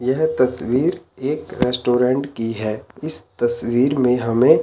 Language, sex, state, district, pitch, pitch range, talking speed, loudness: Hindi, male, Chandigarh, Chandigarh, 125 Hz, 120-135 Hz, 130 wpm, -20 LUFS